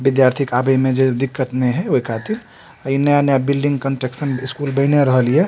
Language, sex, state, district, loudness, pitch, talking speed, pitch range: Maithili, male, Bihar, Supaul, -17 LUFS, 135 Hz, 195 wpm, 130-140 Hz